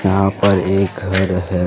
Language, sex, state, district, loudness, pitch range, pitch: Hindi, male, Jharkhand, Deoghar, -16 LUFS, 90-95 Hz, 95 Hz